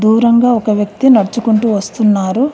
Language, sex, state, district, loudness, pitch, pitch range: Telugu, female, Telangana, Mahabubabad, -12 LUFS, 220 Hz, 210-235 Hz